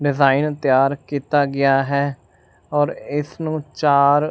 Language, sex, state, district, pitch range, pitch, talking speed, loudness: Punjabi, male, Punjab, Fazilka, 135-145 Hz, 145 Hz, 125 wpm, -19 LUFS